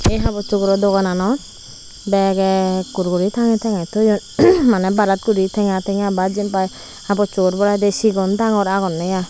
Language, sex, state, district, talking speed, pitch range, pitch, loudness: Chakma, female, Tripura, Unakoti, 150 wpm, 190-205 Hz, 195 Hz, -17 LUFS